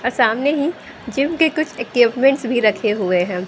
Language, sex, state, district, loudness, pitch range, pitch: Hindi, female, Bihar, West Champaran, -18 LUFS, 220-285 Hz, 250 Hz